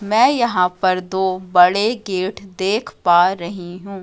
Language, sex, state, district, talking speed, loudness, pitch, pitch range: Hindi, female, Madhya Pradesh, Katni, 150 wpm, -17 LUFS, 190 Hz, 180-200 Hz